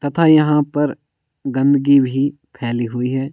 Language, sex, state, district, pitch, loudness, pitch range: Hindi, male, Himachal Pradesh, Shimla, 140 Hz, -16 LUFS, 130-145 Hz